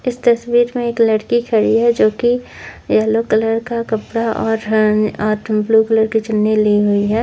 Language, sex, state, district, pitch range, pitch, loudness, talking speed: Hindi, female, Uttar Pradesh, Jyotiba Phule Nagar, 215-235 Hz, 220 Hz, -15 LUFS, 165 wpm